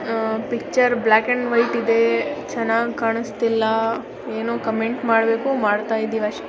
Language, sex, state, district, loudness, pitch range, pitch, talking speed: Kannada, female, Karnataka, Gulbarga, -20 LUFS, 220-235 Hz, 225 Hz, 140 wpm